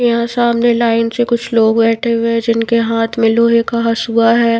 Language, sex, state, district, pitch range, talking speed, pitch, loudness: Hindi, female, Bihar, Patna, 230-235 Hz, 210 wpm, 230 Hz, -13 LUFS